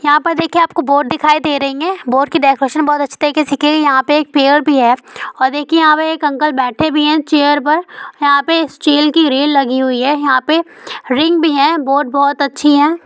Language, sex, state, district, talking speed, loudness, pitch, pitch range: Hindi, female, West Bengal, Purulia, 240 wpm, -12 LUFS, 295 Hz, 280-310 Hz